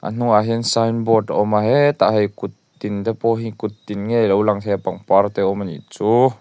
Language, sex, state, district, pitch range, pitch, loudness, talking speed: Mizo, male, Mizoram, Aizawl, 105-115 Hz, 110 Hz, -18 LUFS, 260 wpm